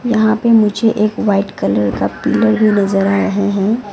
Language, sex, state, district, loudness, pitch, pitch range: Hindi, female, Arunachal Pradesh, Lower Dibang Valley, -14 LUFS, 205 Hz, 195-220 Hz